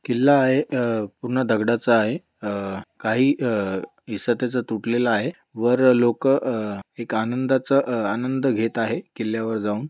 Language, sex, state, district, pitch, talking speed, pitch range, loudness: Marathi, male, Maharashtra, Pune, 120 Hz, 145 wpm, 110-130 Hz, -22 LUFS